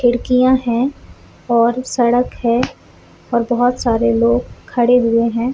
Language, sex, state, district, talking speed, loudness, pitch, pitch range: Hindi, female, Chhattisgarh, Balrampur, 130 wpm, -16 LUFS, 240 Hz, 235-250 Hz